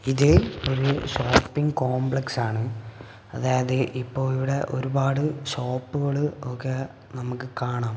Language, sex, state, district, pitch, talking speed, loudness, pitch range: Malayalam, male, Kerala, Kasaragod, 130 Hz, 100 wpm, -25 LUFS, 125-135 Hz